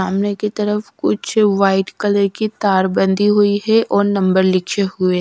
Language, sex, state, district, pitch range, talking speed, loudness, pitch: Hindi, female, Punjab, Fazilka, 190-210 Hz, 160 wpm, -16 LUFS, 200 Hz